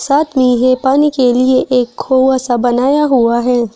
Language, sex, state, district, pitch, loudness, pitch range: Hindi, female, Delhi, New Delhi, 255 Hz, -12 LUFS, 245-265 Hz